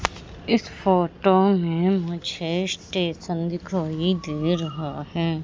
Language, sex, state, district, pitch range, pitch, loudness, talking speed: Hindi, female, Madhya Pradesh, Katni, 165-185 Hz, 175 Hz, -24 LUFS, 100 wpm